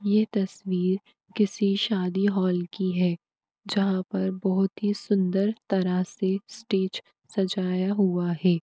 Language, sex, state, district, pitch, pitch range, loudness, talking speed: Hindi, female, Uttar Pradesh, Etah, 195 Hz, 185-205 Hz, -26 LUFS, 130 wpm